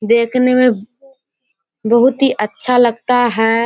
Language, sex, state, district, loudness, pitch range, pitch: Hindi, female, Bihar, Kishanganj, -14 LUFS, 230-255 Hz, 245 Hz